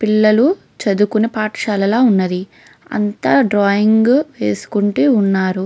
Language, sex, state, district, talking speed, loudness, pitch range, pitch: Telugu, female, Andhra Pradesh, Krishna, 95 wpm, -15 LUFS, 200-220 Hz, 215 Hz